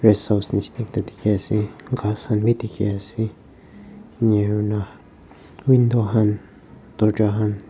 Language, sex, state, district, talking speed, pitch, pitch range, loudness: Nagamese, male, Nagaland, Kohima, 115 wpm, 105 Hz, 100-110 Hz, -21 LUFS